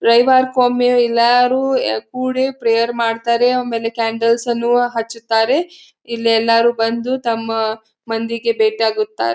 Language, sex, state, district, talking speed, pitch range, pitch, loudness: Kannada, female, Karnataka, Belgaum, 105 wpm, 225-245 Hz, 230 Hz, -16 LUFS